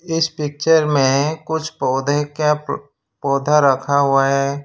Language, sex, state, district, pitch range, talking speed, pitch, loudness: Hindi, male, Gujarat, Valsad, 140-155 Hz, 130 wpm, 145 Hz, -18 LUFS